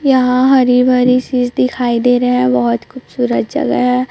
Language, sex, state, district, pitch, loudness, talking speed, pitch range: Hindi, female, Chhattisgarh, Raipur, 250 Hz, -13 LUFS, 175 wpm, 245-255 Hz